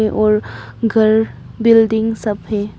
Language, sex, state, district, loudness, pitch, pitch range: Hindi, female, Arunachal Pradesh, Papum Pare, -15 LUFS, 220 Hz, 210-225 Hz